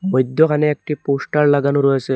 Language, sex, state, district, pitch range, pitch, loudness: Bengali, male, Assam, Hailakandi, 140-150 Hz, 145 Hz, -17 LUFS